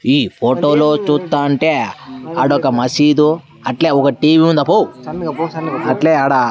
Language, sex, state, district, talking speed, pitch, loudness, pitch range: Telugu, male, Andhra Pradesh, Sri Satya Sai, 140 wpm, 150 Hz, -14 LUFS, 140-160 Hz